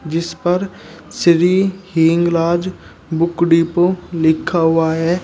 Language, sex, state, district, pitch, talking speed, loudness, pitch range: Hindi, male, Uttar Pradesh, Shamli, 170 Hz, 105 wpm, -16 LUFS, 165-180 Hz